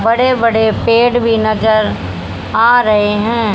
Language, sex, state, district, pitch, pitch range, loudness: Hindi, female, Haryana, Jhajjar, 220 Hz, 210-230 Hz, -12 LUFS